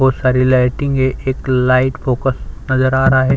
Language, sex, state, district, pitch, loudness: Hindi, male, Chhattisgarh, Sukma, 130 Hz, -15 LUFS